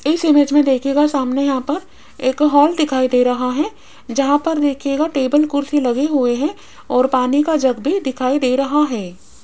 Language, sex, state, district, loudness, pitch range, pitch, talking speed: Hindi, female, Rajasthan, Jaipur, -17 LUFS, 260-295 Hz, 280 Hz, 190 wpm